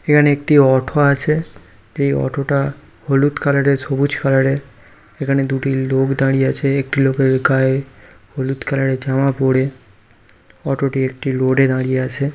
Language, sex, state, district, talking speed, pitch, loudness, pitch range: Bengali, male, West Bengal, Paschim Medinipur, 160 wpm, 135 Hz, -17 LUFS, 130-140 Hz